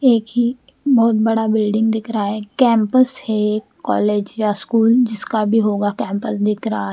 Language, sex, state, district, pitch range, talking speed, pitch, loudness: Hindi, female, Bihar, West Champaran, 210-235 Hz, 165 wpm, 220 Hz, -17 LUFS